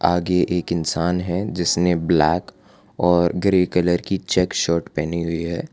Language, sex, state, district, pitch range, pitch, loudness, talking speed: Hindi, male, Gujarat, Valsad, 85-90 Hz, 90 Hz, -20 LUFS, 155 wpm